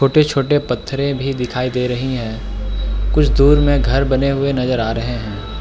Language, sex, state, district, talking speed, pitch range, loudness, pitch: Hindi, male, Uttarakhand, Tehri Garhwal, 180 wpm, 115-140 Hz, -17 LUFS, 130 Hz